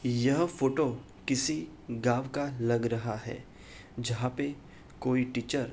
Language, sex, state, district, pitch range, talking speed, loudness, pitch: Hindi, male, Uttar Pradesh, Hamirpur, 120-135 Hz, 135 wpm, -31 LUFS, 125 Hz